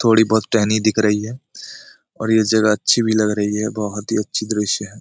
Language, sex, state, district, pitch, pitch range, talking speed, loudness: Hindi, male, Jharkhand, Jamtara, 110 Hz, 105-110 Hz, 230 wpm, -18 LUFS